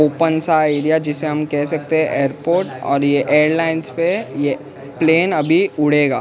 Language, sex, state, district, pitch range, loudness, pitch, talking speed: Hindi, male, Maharashtra, Mumbai Suburban, 145-165 Hz, -17 LUFS, 155 Hz, 165 wpm